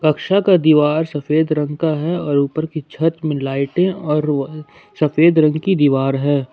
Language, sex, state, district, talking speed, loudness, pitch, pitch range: Hindi, male, Jharkhand, Ranchi, 175 wpm, -17 LUFS, 155 Hz, 145-160 Hz